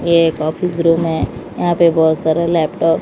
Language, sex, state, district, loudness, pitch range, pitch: Hindi, female, Odisha, Malkangiri, -15 LUFS, 160-170 Hz, 165 Hz